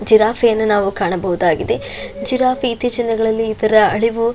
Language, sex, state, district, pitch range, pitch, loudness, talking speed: Kannada, female, Karnataka, Shimoga, 210-235 Hz, 225 Hz, -15 LUFS, 125 wpm